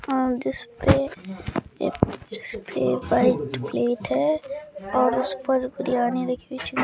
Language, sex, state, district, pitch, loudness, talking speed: Hindi, female, Bihar, Katihar, 245 Hz, -24 LUFS, 115 wpm